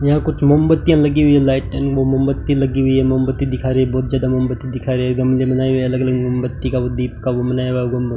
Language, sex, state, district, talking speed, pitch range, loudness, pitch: Hindi, male, Rajasthan, Bikaner, 265 wpm, 125-135 Hz, -17 LUFS, 130 Hz